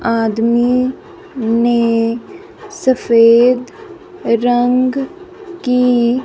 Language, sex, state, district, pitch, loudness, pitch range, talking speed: Hindi, female, Punjab, Fazilka, 250 Hz, -14 LUFS, 235-370 Hz, 50 wpm